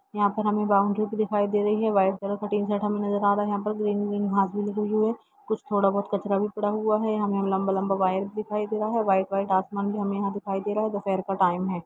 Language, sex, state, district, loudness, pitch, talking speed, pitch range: Hindi, female, Jharkhand, Sahebganj, -26 LUFS, 205 Hz, 300 wpm, 195-210 Hz